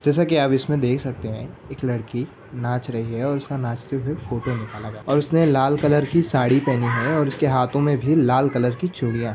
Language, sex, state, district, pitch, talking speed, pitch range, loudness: Hindi, male, Maharashtra, Aurangabad, 130 Hz, 250 wpm, 120-145 Hz, -21 LUFS